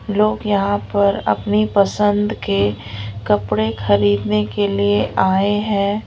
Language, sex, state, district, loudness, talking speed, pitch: Hindi, female, Odisha, Sambalpur, -17 LUFS, 120 wpm, 190 Hz